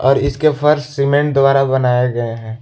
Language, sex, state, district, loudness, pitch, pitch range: Hindi, male, Jharkhand, Ranchi, -15 LUFS, 135 Hz, 125-145 Hz